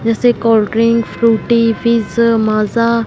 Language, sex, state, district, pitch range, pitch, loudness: Hindi, female, Punjab, Fazilka, 225-230 Hz, 230 Hz, -13 LUFS